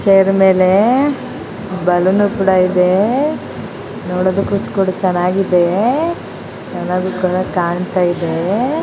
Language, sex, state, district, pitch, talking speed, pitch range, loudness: Kannada, female, Karnataka, Belgaum, 190 Hz, 75 wpm, 180-200 Hz, -15 LUFS